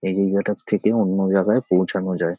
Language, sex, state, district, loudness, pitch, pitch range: Bengali, male, West Bengal, North 24 Parganas, -20 LUFS, 95 Hz, 90-100 Hz